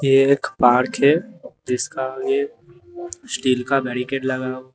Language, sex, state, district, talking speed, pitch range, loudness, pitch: Hindi, male, Uttar Pradesh, Lalitpur, 150 wpm, 130-195 Hz, -20 LUFS, 135 Hz